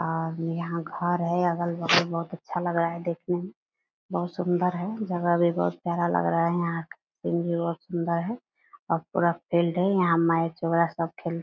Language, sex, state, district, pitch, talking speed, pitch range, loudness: Hindi, female, Bihar, Purnia, 170 Hz, 205 wpm, 165-175 Hz, -27 LUFS